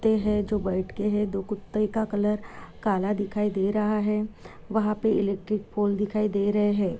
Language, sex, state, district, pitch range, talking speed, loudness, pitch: Hindi, female, Goa, North and South Goa, 200-210 Hz, 180 wpm, -26 LUFS, 210 Hz